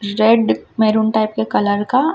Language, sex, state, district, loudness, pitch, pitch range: Hindi, female, Chhattisgarh, Raipur, -16 LUFS, 215 Hz, 205-220 Hz